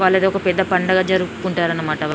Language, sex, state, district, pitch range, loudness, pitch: Telugu, female, Telangana, Nalgonda, 170-190 Hz, -18 LUFS, 185 Hz